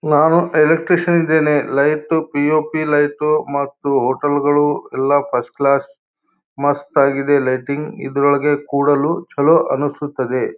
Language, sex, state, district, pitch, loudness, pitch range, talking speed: Kannada, male, Karnataka, Bijapur, 145 Hz, -16 LUFS, 140-155 Hz, 110 wpm